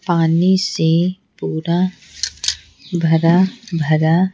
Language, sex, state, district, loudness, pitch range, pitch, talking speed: Hindi, female, Bihar, Patna, -17 LUFS, 165-185 Hz, 170 Hz, 70 wpm